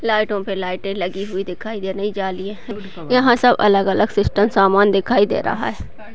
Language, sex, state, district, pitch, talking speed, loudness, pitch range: Hindi, female, Maharashtra, Nagpur, 200 Hz, 235 wpm, -18 LUFS, 195-215 Hz